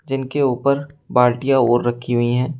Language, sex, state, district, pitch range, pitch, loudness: Hindi, male, Uttar Pradesh, Shamli, 120-140 Hz, 130 Hz, -18 LUFS